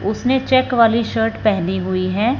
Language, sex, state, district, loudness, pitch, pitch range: Hindi, female, Punjab, Fazilka, -17 LUFS, 225 Hz, 195-245 Hz